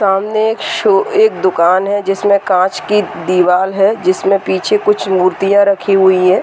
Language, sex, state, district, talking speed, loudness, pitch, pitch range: Hindi, female, Uttar Pradesh, Deoria, 170 wpm, -12 LUFS, 195 Hz, 185-210 Hz